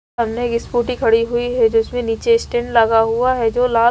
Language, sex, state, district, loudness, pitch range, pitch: Hindi, female, Haryana, Rohtak, -17 LUFS, 225-245 Hz, 235 Hz